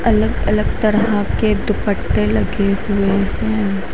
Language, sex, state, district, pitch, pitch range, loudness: Hindi, female, Haryana, Charkhi Dadri, 200 Hz, 185-210 Hz, -17 LUFS